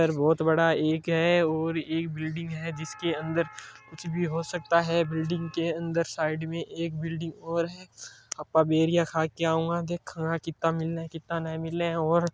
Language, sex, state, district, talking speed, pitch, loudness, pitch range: Hindi, male, Rajasthan, Churu, 190 wpm, 165 Hz, -28 LUFS, 160-170 Hz